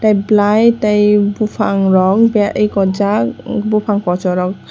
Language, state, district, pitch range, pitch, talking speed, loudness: Kokborok, Tripura, West Tripura, 190-215 Hz, 205 Hz, 140 wpm, -13 LUFS